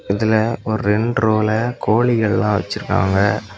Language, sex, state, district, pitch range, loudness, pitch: Tamil, male, Tamil Nadu, Kanyakumari, 105-110 Hz, -18 LUFS, 110 Hz